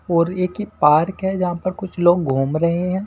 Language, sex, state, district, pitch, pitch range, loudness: Hindi, male, Delhi, New Delhi, 175 Hz, 170-185 Hz, -19 LUFS